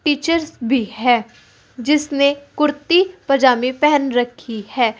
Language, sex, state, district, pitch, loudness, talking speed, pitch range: Hindi, female, Uttar Pradesh, Saharanpur, 275 Hz, -17 LUFS, 110 wpm, 245-300 Hz